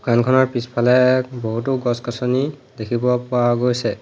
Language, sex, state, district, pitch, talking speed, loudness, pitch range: Assamese, male, Assam, Hailakandi, 125 Hz, 105 wpm, -19 LUFS, 120-130 Hz